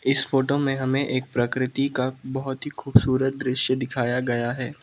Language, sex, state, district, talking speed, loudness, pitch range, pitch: Hindi, male, Manipur, Imphal West, 175 wpm, -24 LUFS, 125-135 Hz, 130 Hz